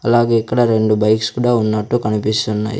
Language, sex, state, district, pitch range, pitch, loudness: Telugu, male, Andhra Pradesh, Sri Satya Sai, 110-120 Hz, 110 Hz, -16 LUFS